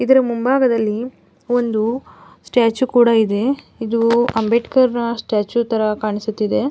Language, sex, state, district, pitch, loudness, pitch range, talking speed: Kannada, female, Karnataka, Mysore, 235 Hz, -17 LUFS, 220-245 Hz, 100 wpm